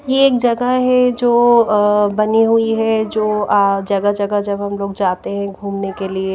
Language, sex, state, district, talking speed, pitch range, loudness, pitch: Hindi, female, Himachal Pradesh, Shimla, 180 wpm, 200-235 Hz, -15 LUFS, 210 Hz